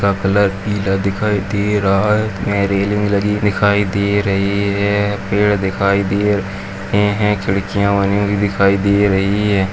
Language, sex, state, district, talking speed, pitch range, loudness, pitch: Kumaoni, male, Uttarakhand, Uttarkashi, 160 wpm, 100-105 Hz, -16 LUFS, 100 Hz